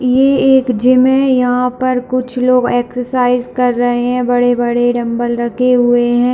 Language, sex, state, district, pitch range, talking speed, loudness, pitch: Hindi, female, Chhattisgarh, Bilaspur, 245-255 Hz, 160 wpm, -13 LUFS, 250 Hz